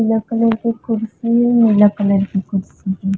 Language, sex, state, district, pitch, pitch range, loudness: Chhattisgarhi, female, Chhattisgarh, Raigarh, 220 Hz, 195-230 Hz, -16 LUFS